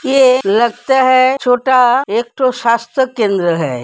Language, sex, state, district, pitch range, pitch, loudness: Hindi, female, Uttar Pradesh, Hamirpur, 230-260 Hz, 245 Hz, -13 LUFS